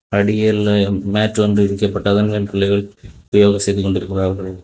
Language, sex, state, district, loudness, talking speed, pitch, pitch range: Tamil, male, Tamil Nadu, Kanyakumari, -16 LUFS, 155 wpm, 100 Hz, 100-105 Hz